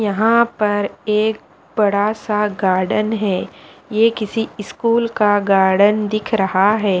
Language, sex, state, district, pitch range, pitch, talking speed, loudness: Hindi, female, Punjab, Fazilka, 200-220 Hz, 210 Hz, 135 wpm, -17 LUFS